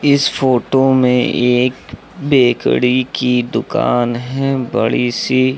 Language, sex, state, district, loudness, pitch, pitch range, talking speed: Hindi, male, Uttar Pradesh, Lucknow, -15 LUFS, 125 Hz, 125-130 Hz, 105 wpm